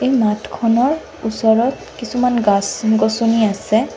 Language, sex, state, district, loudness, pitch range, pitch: Assamese, female, Assam, Sonitpur, -17 LUFS, 220-245 Hz, 225 Hz